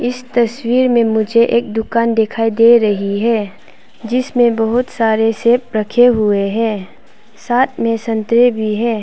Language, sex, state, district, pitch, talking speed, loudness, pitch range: Hindi, female, Arunachal Pradesh, Papum Pare, 230 Hz, 140 wpm, -14 LUFS, 220-240 Hz